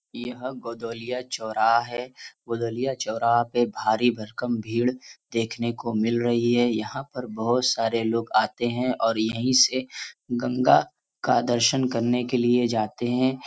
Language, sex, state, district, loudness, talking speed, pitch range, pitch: Hindi, male, Uttar Pradesh, Varanasi, -24 LUFS, 145 wpm, 115-125 Hz, 120 Hz